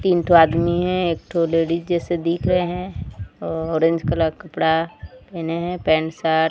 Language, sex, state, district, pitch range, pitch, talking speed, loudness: Hindi, female, Odisha, Sambalpur, 160-175 Hz, 165 Hz, 185 wpm, -20 LUFS